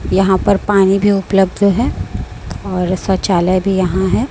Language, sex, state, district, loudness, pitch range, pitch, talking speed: Hindi, male, Chhattisgarh, Raipur, -14 LUFS, 185-200 Hz, 190 Hz, 155 wpm